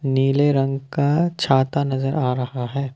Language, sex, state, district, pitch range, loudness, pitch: Hindi, male, Assam, Kamrup Metropolitan, 130-140 Hz, -20 LUFS, 135 Hz